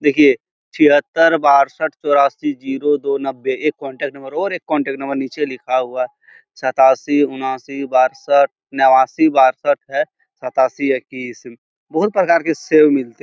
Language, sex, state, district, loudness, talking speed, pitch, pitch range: Hindi, male, Bihar, Jahanabad, -16 LUFS, 140 wpm, 140 Hz, 130-150 Hz